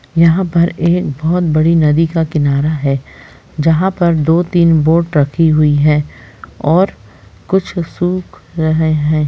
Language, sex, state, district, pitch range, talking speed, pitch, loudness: Hindi, female, Bihar, Saran, 150-170 Hz, 135 wpm, 160 Hz, -13 LUFS